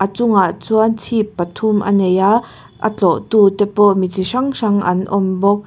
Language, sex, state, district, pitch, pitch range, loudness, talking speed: Mizo, female, Mizoram, Aizawl, 205 Hz, 190-220 Hz, -15 LUFS, 200 wpm